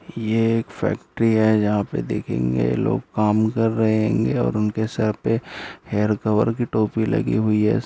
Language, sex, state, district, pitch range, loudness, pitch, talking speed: Hindi, male, Bihar, Jamui, 105-110 Hz, -21 LUFS, 110 Hz, 185 wpm